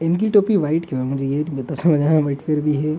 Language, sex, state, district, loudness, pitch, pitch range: Hindi, male, Uttar Pradesh, Gorakhpur, -19 LUFS, 150 Hz, 145-165 Hz